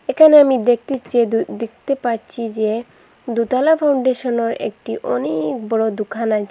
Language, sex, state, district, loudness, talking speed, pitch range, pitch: Bengali, female, Assam, Hailakandi, -18 LUFS, 130 wpm, 225-260 Hz, 235 Hz